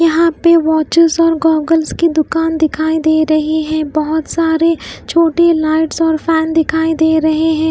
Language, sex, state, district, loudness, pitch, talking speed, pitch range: Hindi, female, Bihar, West Champaran, -13 LUFS, 320 Hz, 170 wpm, 315-330 Hz